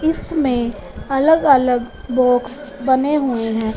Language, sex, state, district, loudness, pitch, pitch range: Hindi, female, Punjab, Fazilka, -17 LUFS, 260 Hz, 245-290 Hz